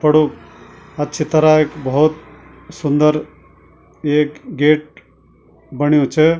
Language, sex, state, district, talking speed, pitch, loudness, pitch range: Garhwali, male, Uttarakhand, Tehri Garhwal, 95 wpm, 150 Hz, -16 LUFS, 145-155 Hz